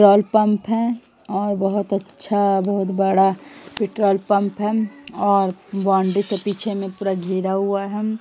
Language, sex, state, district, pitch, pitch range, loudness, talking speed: Hindi, female, Chhattisgarh, Sukma, 200 Hz, 195-210 Hz, -20 LUFS, 145 wpm